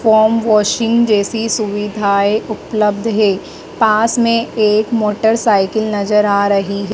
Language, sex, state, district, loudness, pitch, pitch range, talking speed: Hindi, female, Madhya Pradesh, Dhar, -14 LUFS, 215 Hz, 205-225 Hz, 120 wpm